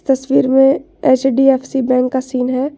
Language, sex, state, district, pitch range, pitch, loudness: Hindi, female, Jharkhand, Garhwa, 260-270 Hz, 265 Hz, -14 LUFS